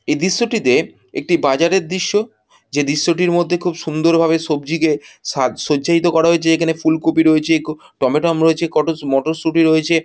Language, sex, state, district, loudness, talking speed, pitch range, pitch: Bengali, male, West Bengal, Jhargram, -16 LUFS, 150 wpm, 155-170 Hz, 165 Hz